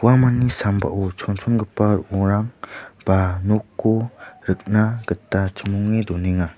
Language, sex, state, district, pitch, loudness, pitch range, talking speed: Garo, male, Meghalaya, West Garo Hills, 105 Hz, -21 LUFS, 95-110 Hz, 90 wpm